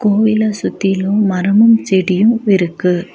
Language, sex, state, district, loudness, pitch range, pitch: Tamil, female, Tamil Nadu, Nilgiris, -13 LUFS, 185-215 Hz, 200 Hz